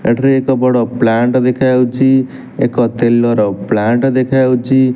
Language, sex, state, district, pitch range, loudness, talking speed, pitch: Odia, male, Odisha, Nuapada, 120-130 Hz, -13 LUFS, 120 wpm, 125 Hz